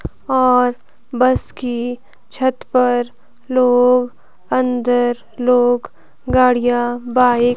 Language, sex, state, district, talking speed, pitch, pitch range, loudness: Hindi, female, Himachal Pradesh, Shimla, 85 wpm, 245 Hz, 245-250 Hz, -16 LUFS